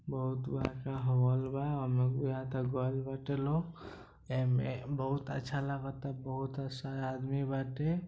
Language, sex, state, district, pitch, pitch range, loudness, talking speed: Bhojpuri, male, Bihar, East Champaran, 135 Hz, 130-140 Hz, -35 LUFS, 120 wpm